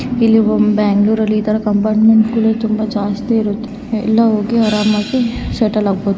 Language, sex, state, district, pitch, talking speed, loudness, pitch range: Kannada, female, Karnataka, Raichur, 220 Hz, 125 wpm, -14 LUFS, 210-225 Hz